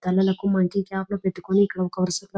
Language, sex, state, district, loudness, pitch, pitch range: Telugu, female, Telangana, Nalgonda, -24 LUFS, 190 Hz, 185-195 Hz